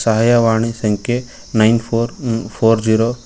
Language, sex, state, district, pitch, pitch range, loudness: Kannada, male, Karnataka, Koppal, 115 Hz, 110-120 Hz, -16 LUFS